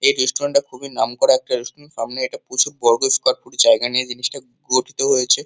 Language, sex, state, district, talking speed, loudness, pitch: Bengali, male, West Bengal, Kolkata, 220 wpm, -18 LUFS, 140 Hz